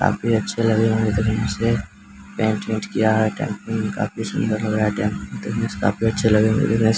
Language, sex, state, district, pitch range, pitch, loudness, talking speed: Hindi, male, Bihar, Samastipur, 105-110 Hz, 110 Hz, -21 LUFS, 230 wpm